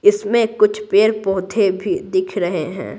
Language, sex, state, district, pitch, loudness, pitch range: Hindi, female, Bihar, Patna, 210 Hz, -18 LUFS, 205-230 Hz